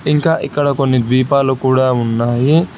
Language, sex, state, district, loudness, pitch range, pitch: Telugu, male, Telangana, Hyderabad, -14 LUFS, 130-145 Hz, 135 Hz